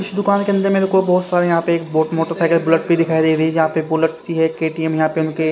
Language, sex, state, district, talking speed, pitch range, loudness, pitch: Hindi, male, Haryana, Rohtak, 295 wpm, 160-175 Hz, -17 LUFS, 165 Hz